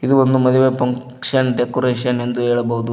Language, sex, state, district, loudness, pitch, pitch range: Kannada, male, Karnataka, Koppal, -17 LUFS, 125 Hz, 120-130 Hz